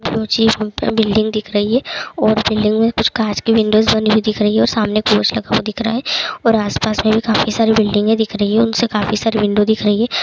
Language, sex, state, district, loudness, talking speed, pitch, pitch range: Hindi, male, Bihar, Begusarai, -15 LUFS, 245 wpm, 220 Hz, 215-225 Hz